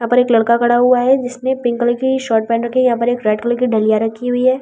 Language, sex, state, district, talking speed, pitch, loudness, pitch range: Hindi, female, Delhi, New Delhi, 310 wpm, 240 Hz, -15 LUFS, 230-250 Hz